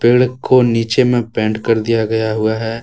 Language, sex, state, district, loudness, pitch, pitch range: Hindi, male, Jharkhand, Deoghar, -15 LUFS, 115 Hz, 110-120 Hz